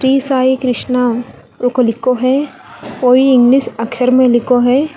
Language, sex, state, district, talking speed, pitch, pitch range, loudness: Hindi, female, Telangana, Hyderabad, 110 wpm, 255 Hz, 245-260 Hz, -13 LUFS